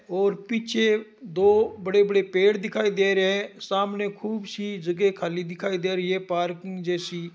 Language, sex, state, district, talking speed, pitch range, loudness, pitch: Marwari, male, Rajasthan, Nagaur, 180 wpm, 185-210 Hz, -24 LUFS, 200 Hz